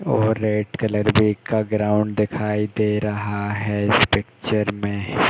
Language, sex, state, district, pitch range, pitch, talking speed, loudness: Hindi, male, Uttar Pradesh, Hamirpur, 105-110 Hz, 105 Hz, 145 wpm, -21 LUFS